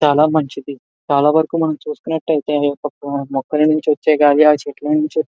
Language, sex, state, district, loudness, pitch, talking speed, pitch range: Telugu, male, Andhra Pradesh, Visakhapatnam, -16 LUFS, 150 Hz, 90 wpm, 145-155 Hz